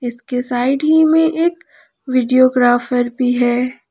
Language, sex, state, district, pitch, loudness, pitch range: Hindi, female, Jharkhand, Palamu, 250 Hz, -15 LUFS, 245-285 Hz